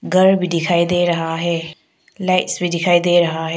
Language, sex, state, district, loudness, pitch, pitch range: Hindi, female, Arunachal Pradesh, Papum Pare, -17 LUFS, 175 Hz, 165-180 Hz